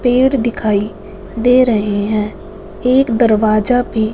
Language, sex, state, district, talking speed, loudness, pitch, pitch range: Hindi, female, Punjab, Fazilka, 115 wpm, -14 LUFS, 220 Hz, 210-245 Hz